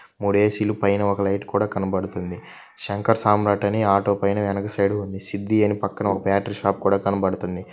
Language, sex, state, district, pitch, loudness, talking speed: Telugu, male, Andhra Pradesh, Krishna, 100 Hz, -22 LUFS, 185 wpm